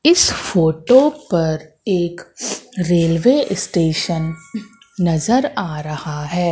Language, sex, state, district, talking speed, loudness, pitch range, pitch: Hindi, female, Madhya Pradesh, Katni, 100 wpm, -18 LUFS, 160-225 Hz, 175 Hz